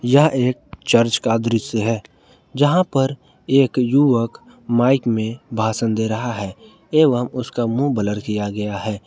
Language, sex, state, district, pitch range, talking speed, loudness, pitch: Hindi, male, Jharkhand, Ranchi, 110-135 Hz, 150 wpm, -19 LUFS, 120 Hz